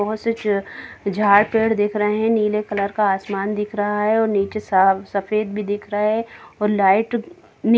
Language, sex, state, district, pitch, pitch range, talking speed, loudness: Hindi, female, Bihar, Gopalganj, 210 Hz, 200-215 Hz, 195 wpm, -20 LUFS